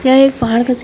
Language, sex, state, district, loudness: Hindi, female, Uttar Pradesh, Shamli, -12 LUFS